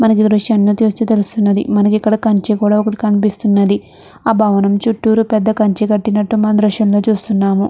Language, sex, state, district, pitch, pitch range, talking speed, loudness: Telugu, female, Andhra Pradesh, Chittoor, 210 Hz, 205-220 Hz, 165 wpm, -13 LUFS